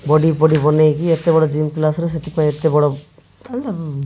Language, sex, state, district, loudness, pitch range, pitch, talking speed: Odia, male, Odisha, Malkangiri, -16 LUFS, 150-165 Hz, 155 Hz, 135 wpm